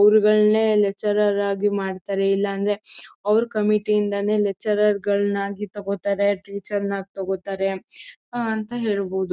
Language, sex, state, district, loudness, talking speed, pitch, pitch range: Kannada, female, Karnataka, Mysore, -22 LUFS, 105 wpm, 205 Hz, 200-210 Hz